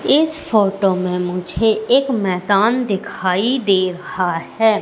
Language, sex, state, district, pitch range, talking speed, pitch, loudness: Hindi, female, Madhya Pradesh, Katni, 185-225 Hz, 125 wpm, 200 Hz, -17 LUFS